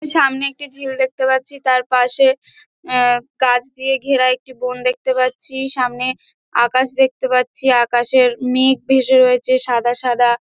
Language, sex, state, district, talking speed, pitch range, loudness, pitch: Bengali, female, West Bengal, Dakshin Dinajpur, 155 wpm, 250-265 Hz, -16 LUFS, 255 Hz